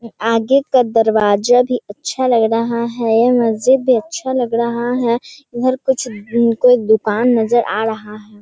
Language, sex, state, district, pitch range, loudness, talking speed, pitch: Hindi, male, Bihar, Kishanganj, 225-250 Hz, -15 LUFS, 155 wpm, 235 Hz